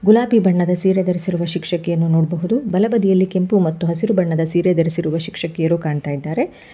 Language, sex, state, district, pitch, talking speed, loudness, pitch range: Kannada, female, Karnataka, Bangalore, 175 Hz, 140 wpm, -18 LUFS, 165-190 Hz